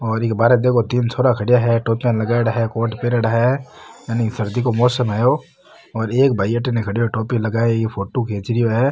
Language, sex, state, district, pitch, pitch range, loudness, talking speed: Marwari, male, Rajasthan, Nagaur, 115 Hz, 115-125 Hz, -18 LUFS, 210 wpm